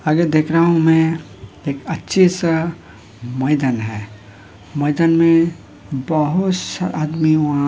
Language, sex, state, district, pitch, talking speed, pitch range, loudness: Hindi, male, Uttar Pradesh, Hamirpur, 155 Hz, 135 wpm, 115-165 Hz, -17 LUFS